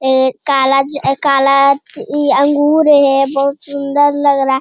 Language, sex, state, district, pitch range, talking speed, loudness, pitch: Hindi, female, Bihar, Jamui, 270-285 Hz, 155 wpm, -12 LUFS, 275 Hz